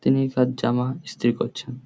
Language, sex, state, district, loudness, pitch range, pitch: Bengali, male, West Bengal, Paschim Medinipur, -24 LUFS, 125-130 Hz, 125 Hz